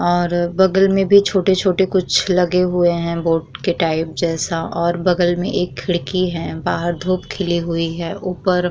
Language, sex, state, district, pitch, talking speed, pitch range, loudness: Hindi, female, Uttar Pradesh, Muzaffarnagar, 175 Hz, 180 wpm, 170-185 Hz, -18 LUFS